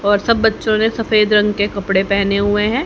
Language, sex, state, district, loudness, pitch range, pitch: Hindi, female, Haryana, Jhajjar, -15 LUFS, 200-220 Hz, 210 Hz